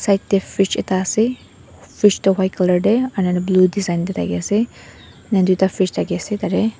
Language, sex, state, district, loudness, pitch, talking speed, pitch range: Nagamese, female, Nagaland, Dimapur, -18 LUFS, 190 Hz, 165 wpm, 185-205 Hz